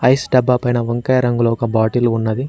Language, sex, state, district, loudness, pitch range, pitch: Telugu, male, Telangana, Mahabubabad, -16 LUFS, 115-125 Hz, 120 Hz